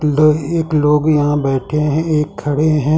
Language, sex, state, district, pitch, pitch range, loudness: Hindi, male, Jharkhand, Ranchi, 150 Hz, 145-155 Hz, -15 LUFS